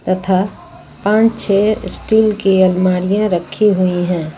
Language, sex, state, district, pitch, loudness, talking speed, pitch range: Hindi, female, Jharkhand, Ranchi, 190 Hz, -15 LUFS, 125 wpm, 185-210 Hz